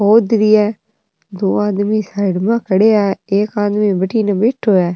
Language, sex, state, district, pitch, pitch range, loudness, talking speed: Rajasthani, female, Rajasthan, Nagaur, 205 Hz, 195-215 Hz, -15 LUFS, 170 wpm